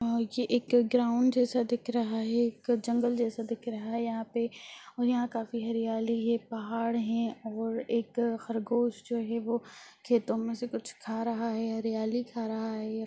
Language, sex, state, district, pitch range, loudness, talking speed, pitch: Hindi, female, Bihar, Jamui, 225-240 Hz, -31 LUFS, 195 wpm, 230 Hz